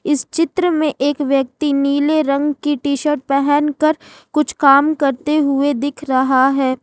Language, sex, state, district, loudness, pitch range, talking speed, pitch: Hindi, female, Jharkhand, Ranchi, -16 LUFS, 275-300 Hz, 150 wpm, 285 Hz